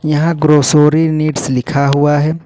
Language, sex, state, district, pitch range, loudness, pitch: Hindi, male, Jharkhand, Ranchi, 145-155 Hz, -12 LUFS, 150 Hz